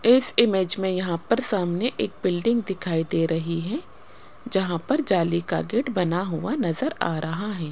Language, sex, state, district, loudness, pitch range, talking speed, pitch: Hindi, female, Rajasthan, Jaipur, -24 LUFS, 170-230 Hz, 180 wpm, 185 Hz